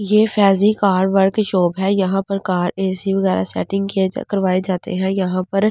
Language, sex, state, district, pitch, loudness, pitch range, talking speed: Hindi, female, Delhi, New Delhi, 195 Hz, -18 LUFS, 185-200 Hz, 210 wpm